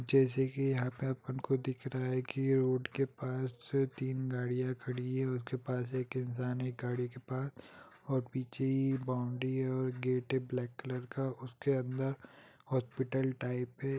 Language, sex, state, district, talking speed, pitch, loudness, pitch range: Hindi, male, Bihar, Gopalganj, 170 wpm, 130 Hz, -36 LUFS, 125-135 Hz